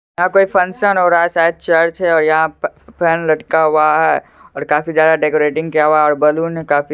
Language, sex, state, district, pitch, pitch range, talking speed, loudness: Hindi, male, Bihar, Supaul, 160 Hz, 155-170 Hz, 215 wpm, -14 LUFS